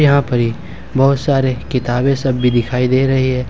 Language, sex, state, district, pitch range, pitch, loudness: Hindi, male, Jharkhand, Ranchi, 125-135 Hz, 130 Hz, -15 LUFS